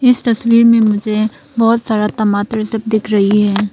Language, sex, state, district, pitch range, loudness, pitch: Hindi, female, Arunachal Pradesh, Papum Pare, 210-230 Hz, -13 LUFS, 220 Hz